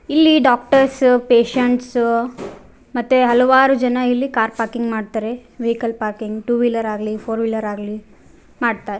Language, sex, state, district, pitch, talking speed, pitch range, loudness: Kannada, female, Karnataka, Raichur, 240 Hz, 125 wpm, 220-250 Hz, -17 LUFS